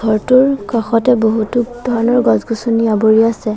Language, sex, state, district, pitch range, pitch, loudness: Assamese, female, Assam, Sonitpur, 220-240 Hz, 230 Hz, -14 LUFS